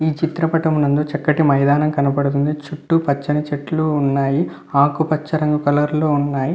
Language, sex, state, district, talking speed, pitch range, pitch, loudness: Telugu, male, Andhra Pradesh, Visakhapatnam, 135 wpm, 145-155 Hz, 150 Hz, -18 LUFS